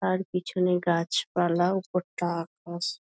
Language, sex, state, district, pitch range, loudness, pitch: Bengali, female, West Bengal, Dakshin Dinajpur, 170-185 Hz, -28 LUFS, 175 Hz